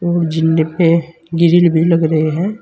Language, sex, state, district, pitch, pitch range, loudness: Hindi, male, Uttar Pradesh, Saharanpur, 165 Hz, 160-170 Hz, -13 LUFS